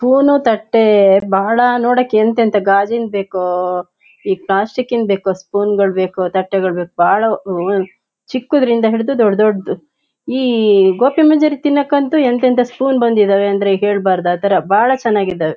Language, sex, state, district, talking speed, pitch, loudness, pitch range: Kannada, female, Karnataka, Shimoga, 125 wpm, 210 Hz, -14 LUFS, 195-250 Hz